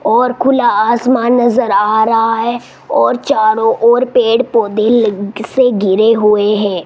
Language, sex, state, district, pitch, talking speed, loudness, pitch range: Hindi, female, Rajasthan, Jaipur, 235 Hz, 150 wpm, -12 LUFS, 215-255 Hz